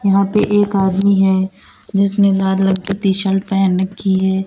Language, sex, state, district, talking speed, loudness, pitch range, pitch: Hindi, female, Uttar Pradesh, Lalitpur, 190 wpm, -15 LUFS, 190-200 Hz, 195 Hz